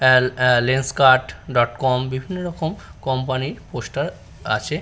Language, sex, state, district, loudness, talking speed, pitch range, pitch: Bengali, male, West Bengal, Purulia, -20 LUFS, 150 wpm, 125-145 Hz, 130 Hz